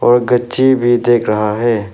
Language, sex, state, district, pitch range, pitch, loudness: Hindi, male, Arunachal Pradesh, Papum Pare, 110-120 Hz, 120 Hz, -13 LUFS